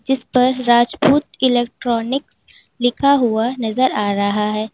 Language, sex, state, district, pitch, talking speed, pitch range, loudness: Hindi, female, Uttar Pradesh, Lalitpur, 245 Hz, 115 wpm, 225-260 Hz, -17 LUFS